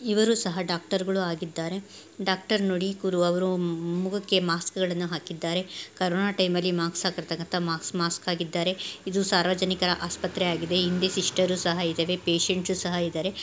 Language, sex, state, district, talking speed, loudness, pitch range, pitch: Kannada, female, Karnataka, Gulbarga, 120 wpm, -27 LUFS, 170-190 Hz, 180 Hz